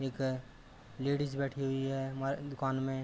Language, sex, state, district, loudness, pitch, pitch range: Hindi, male, Uttar Pradesh, Jalaun, -36 LUFS, 135 Hz, 135-140 Hz